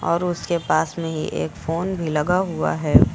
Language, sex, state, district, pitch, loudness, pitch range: Hindi, female, Uttar Pradesh, Lucknow, 165 Hz, -22 LUFS, 150-175 Hz